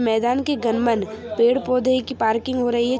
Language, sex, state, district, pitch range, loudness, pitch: Hindi, female, Jharkhand, Sahebganj, 230-255 Hz, -21 LUFS, 240 Hz